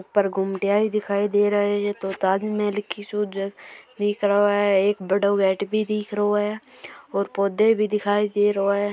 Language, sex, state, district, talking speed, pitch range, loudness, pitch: Marwari, female, Rajasthan, Churu, 195 wpm, 200-210 Hz, -22 LUFS, 205 Hz